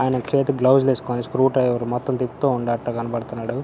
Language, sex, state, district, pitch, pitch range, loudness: Telugu, male, Andhra Pradesh, Anantapur, 125 Hz, 120-130 Hz, -21 LUFS